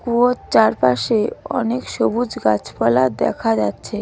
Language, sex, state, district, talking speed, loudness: Bengali, female, West Bengal, Cooch Behar, 105 wpm, -18 LUFS